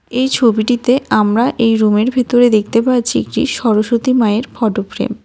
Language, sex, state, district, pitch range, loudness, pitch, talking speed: Bengali, female, West Bengal, Cooch Behar, 220-250 Hz, -14 LUFS, 235 Hz, 160 wpm